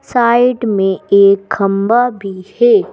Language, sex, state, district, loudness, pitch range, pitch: Hindi, female, Madhya Pradesh, Bhopal, -12 LUFS, 195-245 Hz, 210 Hz